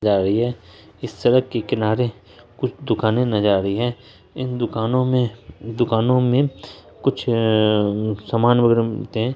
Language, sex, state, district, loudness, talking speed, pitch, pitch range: Hindi, male, Bihar, Saharsa, -20 LUFS, 155 wpm, 115 Hz, 105-125 Hz